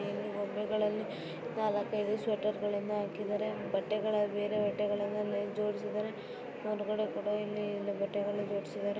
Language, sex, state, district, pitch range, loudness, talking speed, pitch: Kannada, female, Karnataka, Belgaum, 205-210 Hz, -35 LUFS, 115 wpm, 210 Hz